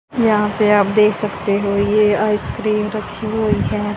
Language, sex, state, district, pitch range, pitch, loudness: Hindi, female, Haryana, Charkhi Dadri, 210-215 Hz, 210 Hz, -17 LUFS